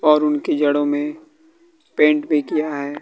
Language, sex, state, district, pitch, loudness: Hindi, male, Bihar, West Champaran, 150 Hz, -19 LUFS